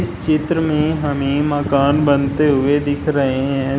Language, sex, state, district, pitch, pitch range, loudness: Hindi, male, Uttar Pradesh, Shamli, 145 Hz, 140-150 Hz, -17 LUFS